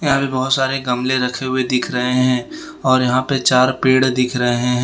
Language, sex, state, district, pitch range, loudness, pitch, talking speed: Hindi, male, Gujarat, Valsad, 125-135 Hz, -17 LUFS, 130 Hz, 225 wpm